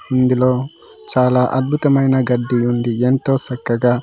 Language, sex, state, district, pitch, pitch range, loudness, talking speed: Telugu, male, Andhra Pradesh, Manyam, 125 Hz, 125-135 Hz, -16 LUFS, 105 wpm